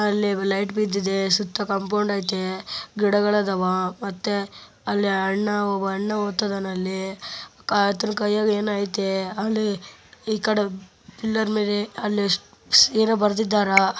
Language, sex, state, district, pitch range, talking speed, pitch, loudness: Kannada, male, Karnataka, Bellary, 195-210 Hz, 105 wpm, 205 Hz, -23 LUFS